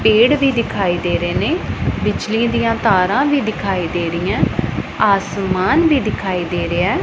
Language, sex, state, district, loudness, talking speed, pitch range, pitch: Punjabi, female, Punjab, Pathankot, -17 LUFS, 155 wpm, 185-235 Hz, 200 Hz